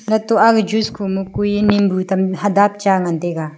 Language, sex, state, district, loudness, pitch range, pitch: Wancho, female, Arunachal Pradesh, Longding, -16 LUFS, 190-210 Hz, 200 Hz